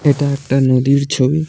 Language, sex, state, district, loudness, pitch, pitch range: Bengali, male, West Bengal, Alipurduar, -15 LUFS, 140 Hz, 135-145 Hz